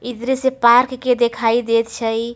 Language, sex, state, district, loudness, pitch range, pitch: Maithili, female, Bihar, Samastipur, -17 LUFS, 230-250 Hz, 240 Hz